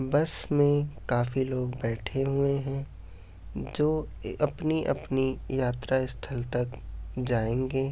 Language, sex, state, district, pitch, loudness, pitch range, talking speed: Hindi, male, Uttar Pradesh, Hamirpur, 130 Hz, -29 LUFS, 120-140 Hz, 100 wpm